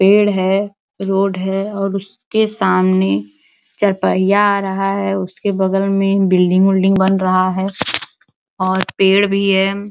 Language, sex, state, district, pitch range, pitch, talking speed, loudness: Hindi, female, Uttar Pradesh, Gorakhpur, 190-200 Hz, 195 Hz, 140 wpm, -15 LUFS